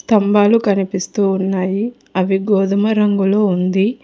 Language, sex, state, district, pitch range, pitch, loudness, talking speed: Telugu, female, Telangana, Hyderabad, 190-210 Hz, 200 Hz, -16 LUFS, 105 wpm